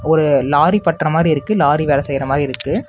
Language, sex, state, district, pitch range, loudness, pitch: Tamil, male, Tamil Nadu, Namakkal, 140-165 Hz, -15 LUFS, 150 Hz